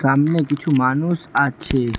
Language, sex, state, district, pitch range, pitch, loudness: Bengali, female, West Bengal, Alipurduar, 135-160 Hz, 145 Hz, -19 LUFS